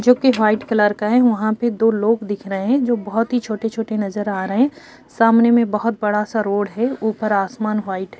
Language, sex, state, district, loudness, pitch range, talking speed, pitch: Hindi, female, Uttar Pradesh, Jyotiba Phule Nagar, -18 LUFS, 210-235 Hz, 225 wpm, 220 Hz